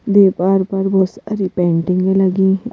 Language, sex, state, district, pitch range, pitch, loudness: Hindi, female, Madhya Pradesh, Bhopal, 185-195 Hz, 190 Hz, -15 LUFS